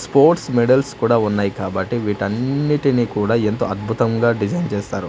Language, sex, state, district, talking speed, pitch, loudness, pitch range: Telugu, male, Andhra Pradesh, Manyam, 130 wpm, 115 Hz, -18 LUFS, 100-130 Hz